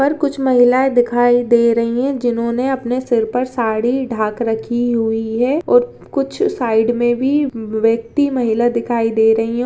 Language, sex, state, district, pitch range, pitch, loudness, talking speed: Hindi, female, Uttar Pradesh, Jyotiba Phule Nagar, 230-260 Hz, 240 Hz, -16 LUFS, 160 wpm